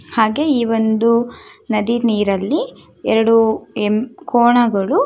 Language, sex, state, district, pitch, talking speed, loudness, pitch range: Kannada, female, Karnataka, Shimoga, 225 Hz, 95 wpm, -16 LUFS, 220-240 Hz